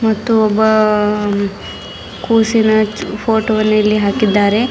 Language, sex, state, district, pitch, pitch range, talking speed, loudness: Kannada, female, Karnataka, Bidar, 215 Hz, 210-220 Hz, 100 wpm, -14 LUFS